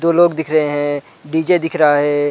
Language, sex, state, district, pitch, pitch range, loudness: Hindi, male, Chhattisgarh, Rajnandgaon, 155 Hz, 145-165 Hz, -16 LUFS